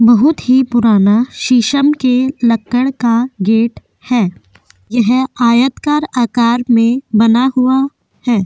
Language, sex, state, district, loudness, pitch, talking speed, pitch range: Hindi, female, Goa, North and South Goa, -13 LUFS, 240 Hz, 115 wpm, 230-260 Hz